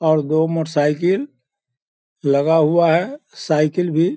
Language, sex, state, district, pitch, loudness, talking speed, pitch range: Hindi, male, Bihar, Sitamarhi, 160 Hz, -18 LUFS, 145 wpm, 150-170 Hz